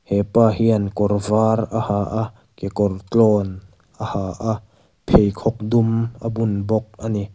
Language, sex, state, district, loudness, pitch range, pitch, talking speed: Mizo, male, Mizoram, Aizawl, -20 LUFS, 100-110 Hz, 110 Hz, 155 wpm